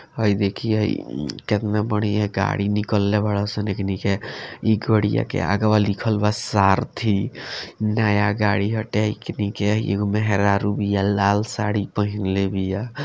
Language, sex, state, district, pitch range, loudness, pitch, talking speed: Bhojpuri, male, Bihar, Gopalganj, 100-110 Hz, -22 LUFS, 105 Hz, 140 wpm